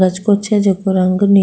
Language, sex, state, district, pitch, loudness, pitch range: Rajasthani, female, Rajasthan, Nagaur, 195 Hz, -14 LUFS, 185-200 Hz